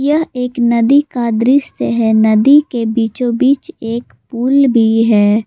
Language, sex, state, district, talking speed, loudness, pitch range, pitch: Hindi, female, Jharkhand, Palamu, 155 wpm, -13 LUFS, 225-270 Hz, 240 Hz